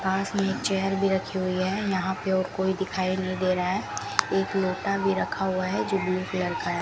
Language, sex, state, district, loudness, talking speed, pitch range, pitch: Hindi, female, Rajasthan, Bikaner, -26 LUFS, 245 wpm, 185-195 Hz, 190 Hz